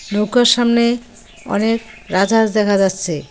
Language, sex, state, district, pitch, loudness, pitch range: Bengali, female, West Bengal, Cooch Behar, 215 Hz, -16 LUFS, 200-235 Hz